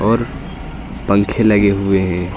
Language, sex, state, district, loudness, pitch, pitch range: Hindi, male, Uttar Pradesh, Lucknow, -15 LUFS, 100 Hz, 95-105 Hz